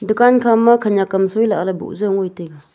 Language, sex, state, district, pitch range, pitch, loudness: Wancho, female, Arunachal Pradesh, Longding, 190-225 Hz, 200 Hz, -15 LUFS